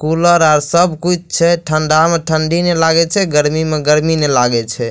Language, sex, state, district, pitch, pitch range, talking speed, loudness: Maithili, male, Bihar, Madhepura, 160 Hz, 150-170 Hz, 210 wpm, -13 LUFS